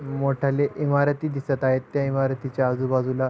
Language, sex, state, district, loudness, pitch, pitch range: Marathi, male, Maharashtra, Pune, -24 LUFS, 135 Hz, 130-140 Hz